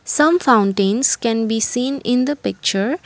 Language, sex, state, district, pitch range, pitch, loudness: English, female, Assam, Kamrup Metropolitan, 220-275 Hz, 245 Hz, -17 LUFS